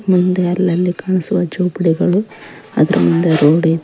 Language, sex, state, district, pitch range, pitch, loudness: Kannada, female, Karnataka, Koppal, 165-185 Hz, 180 Hz, -15 LUFS